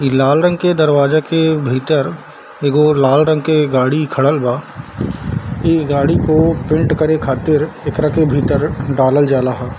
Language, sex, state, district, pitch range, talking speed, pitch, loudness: Hindi, male, Bihar, Darbhanga, 135-155 Hz, 170 wpm, 150 Hz, -14 LUFS